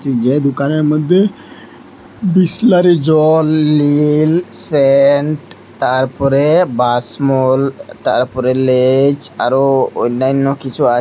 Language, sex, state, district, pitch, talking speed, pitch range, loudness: Bengali, male, Assam, Hailakandi, 140 Hz, 80 wpm, 130-155 Hz, -13 LUFS